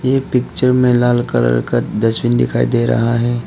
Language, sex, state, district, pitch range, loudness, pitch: Hindi, male, Arunachal Pradesh, Papum Pare, 110-125 Hz, -15 LUFS, 120 Hz